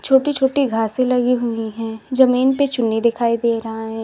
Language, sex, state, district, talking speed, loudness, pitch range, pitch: Hindi, female, Uttar Pradesh, Lalitpur, 195 wpm, -18 LUFS, 225-260 Hz, 235 Hz